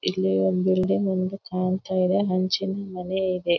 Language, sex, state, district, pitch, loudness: Kannada, female, Karnataka, Belgaum, 185 Hz, -24 LUFS